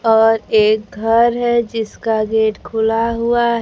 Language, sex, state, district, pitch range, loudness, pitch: Hindi, female, Bihar, Kaimur, 220-235 Hz, -16 LUFS, 225 Hz